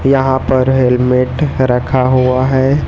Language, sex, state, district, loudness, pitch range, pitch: Hindi, male, Chhattisgarh, Raipur, -12 LUFS, 125-135 Hz, 130 Hz